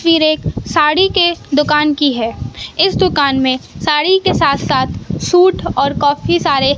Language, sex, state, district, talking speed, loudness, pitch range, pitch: Hindi, male, Madhya Pradesh, Katni, 160 wpm, -13 LUFS, 285-345 Hz, 300 Hz